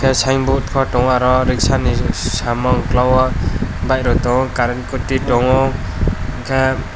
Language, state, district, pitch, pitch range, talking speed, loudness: Kokborok, Tripura, West Tripura, 125 Hz, 120-130 Hz, 155 wpm, -16 LUFS